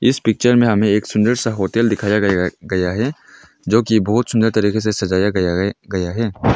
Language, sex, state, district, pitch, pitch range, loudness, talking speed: Hindi, male, Arunachal Pradesh, Longding, 105 Hz, 95-115 Hz, -17 LUFS, 200 wpm